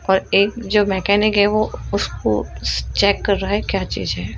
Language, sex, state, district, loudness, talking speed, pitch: Hindi, female, Uttar Pradesh, Shamli, -18 LUFS, 190 wpm, 195 Hz